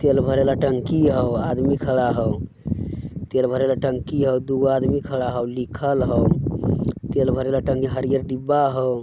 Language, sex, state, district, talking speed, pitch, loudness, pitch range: Magahi, male, Bihar, Jamui, 180 wpm, 130 Hz, -21 LUFS, 125-135 Hz